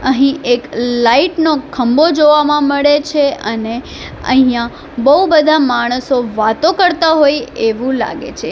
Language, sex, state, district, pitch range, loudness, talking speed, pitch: Gujarati, female, Gujarat, Valsad, 240-300 Hz, -13 LUFS, 135 wpm, 270 Hz